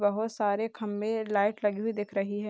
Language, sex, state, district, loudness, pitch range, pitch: Hindi, female, Bihar, Sitamarhi, -30 LUFS, 205-220 Hz, 210 Hz